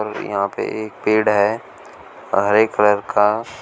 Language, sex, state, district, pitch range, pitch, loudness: Hindi, male, Uttar Pradesh, Shamli, 105-110 Hz, 105 Hz, -18 LUFS